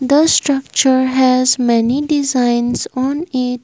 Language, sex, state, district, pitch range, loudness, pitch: English, female, Assam, Kamrup Metropolitan, 250-280 Hz, -14 LUFS, 260 Hz